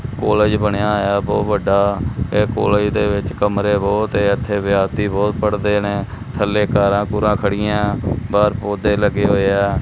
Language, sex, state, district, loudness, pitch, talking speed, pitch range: Punjabi, male, Punjab, Kapurthala, -17 LUFS, 105 Hz, 155 wpm, 100-105 Hz